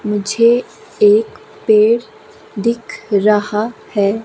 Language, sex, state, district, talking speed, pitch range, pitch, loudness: Hindi, female, Himachal Pradesh, Shimla, 85 wpm, 210-260 Hz, 230 Hz, -15 LUFS